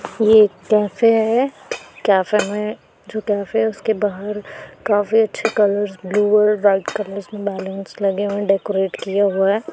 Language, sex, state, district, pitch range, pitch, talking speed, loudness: Hindi, female, Punjab, Pathankot, 195-210 Hz, 205 Hz, 155 wpm, -18 LUFS